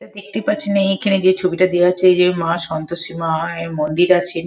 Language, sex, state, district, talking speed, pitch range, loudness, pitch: Bengali, female, West Bengal, Kolkata, 200 wpm, 165-190 Hz, -17 LUFS, 180 Hz